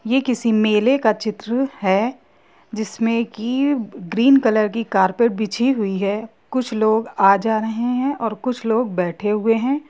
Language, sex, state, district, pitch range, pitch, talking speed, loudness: Hindi, female, Jharkhand, Jamtara, 215-245 Hz, 225 Hz, 170 wpm, -19 LUFS